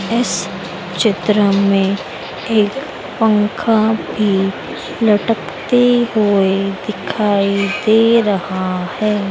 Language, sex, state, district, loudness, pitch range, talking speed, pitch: Hindi, female, Madhya Pradesh, Dhar, -16 LUFS, 195-220 Hz, 75 wpm, 205 Hz